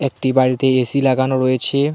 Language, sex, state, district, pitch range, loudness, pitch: Bengali, male, West Bengal, Cooch Behar, 130-140 Hz, -16 LUFS, 130 Hz